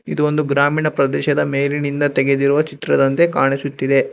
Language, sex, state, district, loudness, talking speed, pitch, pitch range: Kannada, male, Karnataka, Bangalore, -17 LUFS, 115 wpm, 140 Hz, 140-150 Hz